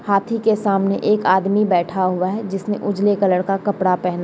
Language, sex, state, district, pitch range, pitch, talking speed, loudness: Hindi, male, Bihar, Bhagalpur, 185-205 Hz, 195 Hz, 210 wpm, -18 LUFS